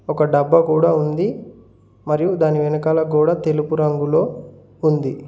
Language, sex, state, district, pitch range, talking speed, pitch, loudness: Telugu, male, Telangana, Mahabubabad, 145-160 Hz, 125 wpm, 155 Hz, -18 LUFS